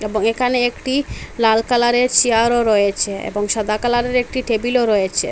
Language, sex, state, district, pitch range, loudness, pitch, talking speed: Bengali, female, Assam, Hailakandi, 215-245 Hz, -17 LUFS, 235 Hz, 145 wpm